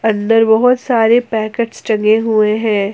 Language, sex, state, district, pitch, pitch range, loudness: Hindi, female, Jharkhand, Ranchi, 220 Hz, 215-230 Hz, -13 LUFS